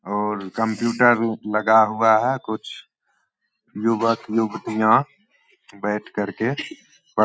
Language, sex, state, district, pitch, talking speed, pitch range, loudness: Hindi, male, Bihar, Begusarai, 110 Hz, 90 wpm, 105-115 Hz, -21 LUFS